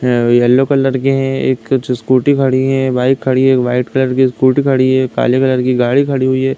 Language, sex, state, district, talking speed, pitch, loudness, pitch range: Hindi, male, Uttar Pradesh, Deoria, 230 wpm, 130 Hz, -13 LUFS, 125-135 Hz